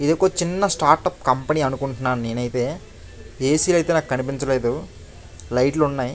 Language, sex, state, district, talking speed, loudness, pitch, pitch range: Telugu, male, Andhra Pradesh, Chittoor, 135 wpm, -21 LUFS, 130 Hz, 120-155 Hz